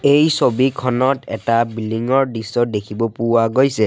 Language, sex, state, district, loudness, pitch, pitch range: Assamese, male, Assam, Sonitpur, -18 LUFS, 115 Hz, 115-130 Hz